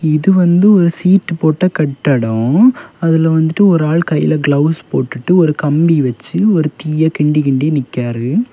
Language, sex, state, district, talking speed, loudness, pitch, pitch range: Tamil, male, Tamil Nadu, Kanyakumari, 150 wpm, -13 LUFS, 160 Hz, 145-180 Hz